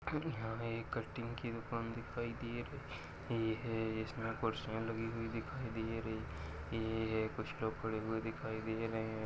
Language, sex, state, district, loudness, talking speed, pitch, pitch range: Hindi, male, Maharashtra, Sindhudurg, -41 LUFS, 160 wpm, 115 Hz, 110-115 Hz